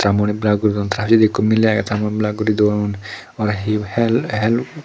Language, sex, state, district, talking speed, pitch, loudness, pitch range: Chakma, male, Tripura, Dhalai, 220 wpm, 105 Hz, -17 LUFS, 105-110 Hz